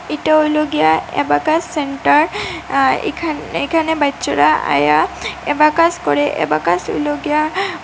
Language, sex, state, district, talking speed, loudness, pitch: Bengali, female, Assam, Hailakandi, 105 wpm, -16 LUFS, 300 Hz